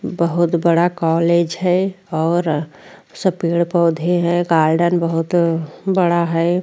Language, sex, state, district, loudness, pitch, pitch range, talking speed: Hindi, female, Uttarakhand, Tehri Garhwal, -17 LUFS, 170 Hz, 165-175 Hz, 115 wpm